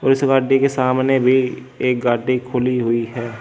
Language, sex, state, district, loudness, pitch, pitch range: Hindi, male, Delhi, New Delhi, -18 LUFS, 125 Hz, 120-135 Hz